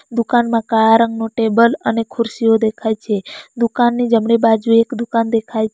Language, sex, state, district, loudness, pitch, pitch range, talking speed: Gujarati, female, Gujarat, Valsad, -16 LUFS, 230 Hz, 220-235 Hz, 155 wpm